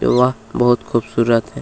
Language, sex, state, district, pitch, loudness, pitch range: Hindi, male, Chhattisgarh, Kabirdham, 120 Hz, -17 LUFS, 115-125 Hz